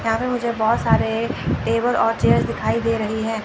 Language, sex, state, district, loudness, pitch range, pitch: Hindi, male, Chandigarh, Chandigarh, -20 LUFS, 220-235 Hz, 230 Hz